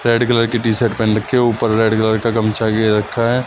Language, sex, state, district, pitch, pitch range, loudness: Hindi, male, Bihar, West Champaran, 115 Hz, 110-120 Hz, -16 LUFS